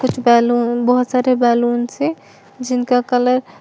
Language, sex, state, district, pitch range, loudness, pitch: Hindi, female, Uttar Pradesh, Lalitpur, 240-250 Hz, -16 LUFS, 245 Hz